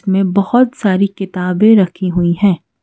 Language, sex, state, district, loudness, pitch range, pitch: Hindi, female, Madhya Pradesh, Bhopal, -13 LUFS, 180-205 Hz, 195 Hz